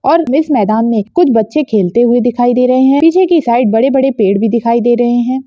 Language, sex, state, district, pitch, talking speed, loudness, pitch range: Hindi, female, Bihar, Begusarai, 245 Hz, 250 wpm, -11 LUFS, 230-270 Hz